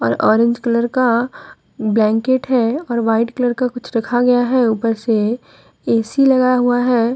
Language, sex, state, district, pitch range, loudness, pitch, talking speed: Hindi, female, Jharkhand, Deoghar, 230-250 Hz, -16 LUFS, 240 Hz, 160 wpm